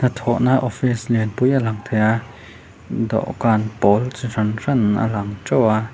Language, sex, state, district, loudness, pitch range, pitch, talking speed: Mizo, male, Mizoram, Aizawl, -19 LUFS, 110-125 Hz, 115 Hz, 170 wpm